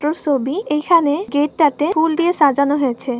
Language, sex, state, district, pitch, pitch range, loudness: Bengali, female, West Bengal, Purulia, 295 Hz, 280-320 Hz, -17 LUFS